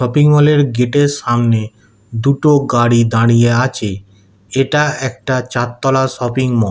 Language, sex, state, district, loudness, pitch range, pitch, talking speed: Bengali, male, West Bengal, Kolkata, -14 LUFS, 115-135 Hz, 125 Hz, 105 wpm